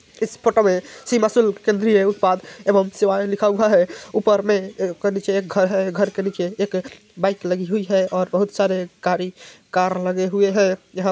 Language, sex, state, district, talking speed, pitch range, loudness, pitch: Hindi, male, Bihar, Vaishali, 200 wpm, 185-205 Hz, -20 LUFS, 195 Hz